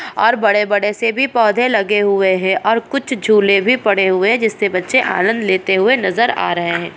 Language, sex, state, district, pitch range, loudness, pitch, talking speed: Hindi, female, Bihar, Purnia, 190-230 Hz, -14 LUFS, 205 Hz, 205 wpm